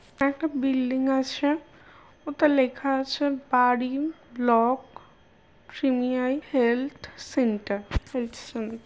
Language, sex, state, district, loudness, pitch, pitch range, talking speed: Bengali, female, West Bengal, Purulia, -26 LUFS, 260 Hz, 245-280 Hz, 75 wpm